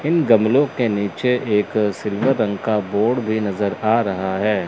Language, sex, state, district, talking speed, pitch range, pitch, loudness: Hindi, male, Chandigarh, Chandigarh, 180 wpm, 100-120 Hz, 110 Hz, -19 LUFS